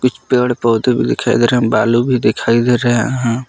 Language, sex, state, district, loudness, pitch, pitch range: Hindi, male, Jharkhand, Palamu, -14 LUFS, 120 Hz, 115-125 Hz